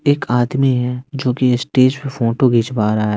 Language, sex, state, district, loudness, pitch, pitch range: Hindi, male, Bihar, West Champaran, -16 LUFS, 125 Hz, 120-130 Hz